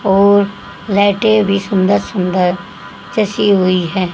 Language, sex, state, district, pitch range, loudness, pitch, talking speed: Hindi, female, Haryana, Charkhi Dadri, 180-200 Hz, -14 LUFS, 195 Hz, 115 wpm